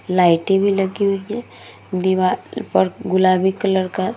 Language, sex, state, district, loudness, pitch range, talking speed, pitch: Hindi, female, Uttar Pradesh, Muzaffarnagar, -18 LUFS, 185-195 Hz, 160 wpm, 190 Hz